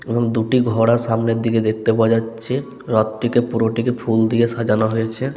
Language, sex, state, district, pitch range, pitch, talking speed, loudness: Bengali, male, West Bengal, Paschim Medinipur, 115-120 Hz, 115 Hz, 165 wpm, -18 LUFS